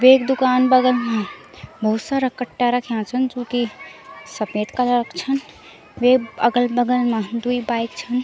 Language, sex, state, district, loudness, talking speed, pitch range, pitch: Garhwali, female, Uttarakhand, Tehri Garhwal, -20 LUFS, 155 wpm, 235-255 Hz, 245 Hz